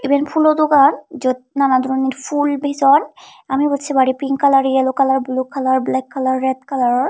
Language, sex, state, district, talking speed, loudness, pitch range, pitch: Chakma, female, Tripura, Unakoti, 185 wpm, -16 LUFS, 260-285 Hz, 270 Hz